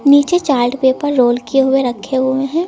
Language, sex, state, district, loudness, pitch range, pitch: Hindi, female, Uttar Pradesh, Lucknow, -14 LUFS, 255-285 Hz, 270 Hz